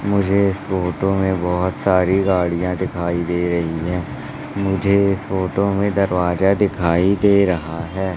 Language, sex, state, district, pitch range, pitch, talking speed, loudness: Hindi, male, Madhya Pradesh, Katni, 90-100 Hz, 95 Hz, 145 wpm, -18 LUFS